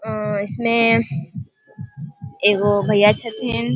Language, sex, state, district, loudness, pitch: Maithili, female, Bihar, Vaishali, -18 LUFS, 160 Hz